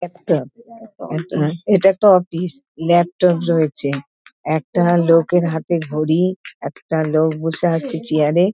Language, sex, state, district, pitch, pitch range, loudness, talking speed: Bengali, female, West Bengal, North 24 Parganas, 170 Hz, 155-180 Hz, -17 LUFS, 120 wpm